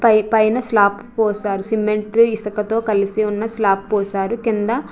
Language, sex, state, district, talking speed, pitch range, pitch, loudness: Telugu, female, Andhra Pradesh, Chittoor, 135 wpm, 205-225 Hz, 215 Hz, -18 LUFS